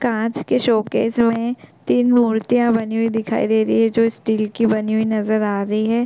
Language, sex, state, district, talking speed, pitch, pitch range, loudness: Hindi, female, Chhattisgarh, Korba, 215 wpm, 225 Hz, 220-235 Hz, -18 LUFS